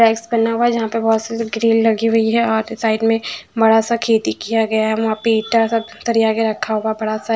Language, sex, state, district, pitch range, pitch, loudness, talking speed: Hindi, female, Punjab, Fazilka, 220-230 Hz, 225 Hz, -17 LUFS, 235 wpm